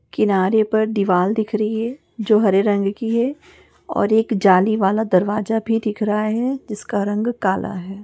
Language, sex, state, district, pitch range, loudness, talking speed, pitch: Hindi, female, Chhattisgarh, Bastar, 200-220 Hz, -19 LUFS, 180 wpm, 215 Hz